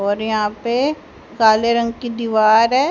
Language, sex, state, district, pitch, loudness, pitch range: Hindi, female, Haryana, Charkhi Dadri, 230 Hz, -17 LUFS, 215-235 Hz